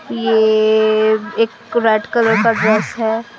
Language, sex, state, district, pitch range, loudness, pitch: Hindi, female, Assam, Sonitpur, 215-230 Hz, -15 LUFS, 220 Hz